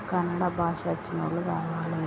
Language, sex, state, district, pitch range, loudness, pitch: Telugu, female, Andhra Pradesh, Srikakulam, 165-175 Hz, -29 LUFS, 170 Hz